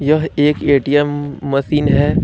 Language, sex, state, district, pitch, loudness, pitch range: Hindi, male, Jharkhand, Deoghar, 145 Hz, -15 LUFS, 140-150 Hz